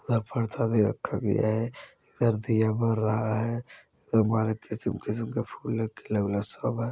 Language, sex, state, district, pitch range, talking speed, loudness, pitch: Bajjika, male, Bihar, Vaishali, 110-115 Hz, 85 wpm, -28 LUFS, 110 Hz